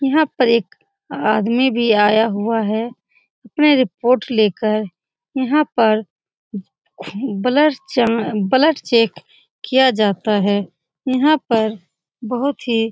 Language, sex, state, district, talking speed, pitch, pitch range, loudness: Hindi, female, Bihar, Saran, 120 wpm, 230 Hz, 210-265 Hz, -17 LUFS